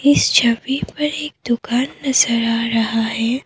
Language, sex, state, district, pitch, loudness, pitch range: Hindi, female, Assam, Kamrup Metropolitan, 240 Hz, -17 LUFS, 230-270 Hz